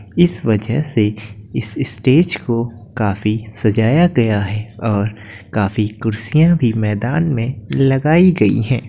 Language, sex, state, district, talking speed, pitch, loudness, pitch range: Hindi, male, Uttar Pradesh, Etah, 130 wpm, 115 Hz, -16 LUFS, 105-135 Hz